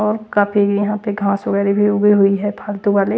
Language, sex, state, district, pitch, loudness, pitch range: Hindi, female, Bihar, West Champaran, 205 Hz, -16 LUFS, 200-210 Hz